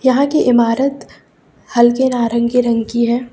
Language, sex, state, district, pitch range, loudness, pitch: Hindi, female, Uttar Pradesh, Lucknow, 235-255 Hz, -14 LUFS, 240 Hz